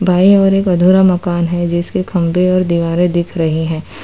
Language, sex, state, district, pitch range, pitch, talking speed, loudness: Hindi, female, Gujarat, Valsad, 170-185 Hz, 175 Hz, 195 wpm, -13 LUFS